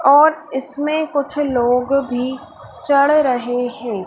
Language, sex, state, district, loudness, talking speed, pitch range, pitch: Hindi, female, Madhya Pradesh, Dhar, -17 LUFS, 120 wpm, 245-295 Hz, 275 Hz